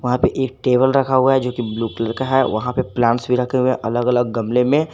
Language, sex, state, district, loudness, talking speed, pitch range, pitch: Hindi, male, Jharkhand, Garhwa, -18 LUFS, 280 wpm, 120-130 Hz, 125 Hz